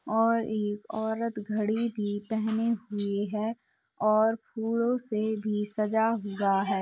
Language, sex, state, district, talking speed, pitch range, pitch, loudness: Hindi, female, Uttar Pradesh, Hamirpur, 130 wpm, 210-225 Hz, 215 Hz, -29 LUFS